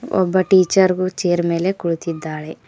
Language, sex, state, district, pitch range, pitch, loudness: Kannada, female, Karnataka, Koppal, 170-185 Hz, 180 Hz, -18 LUFS